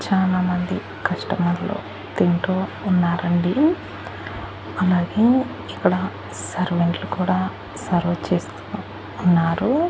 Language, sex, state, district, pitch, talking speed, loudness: Telugu, female, Andhra Pradesh, Annamaya, 175 Hz, 85 wpm, -22 LUFS